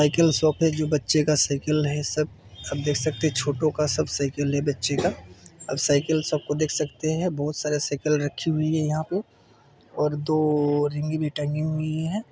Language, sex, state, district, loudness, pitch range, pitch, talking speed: Hindi, male, Chhattisgarh, Bilaspur, -24 LUFS, 145-155 Hz, 150 Hz, 205 wpm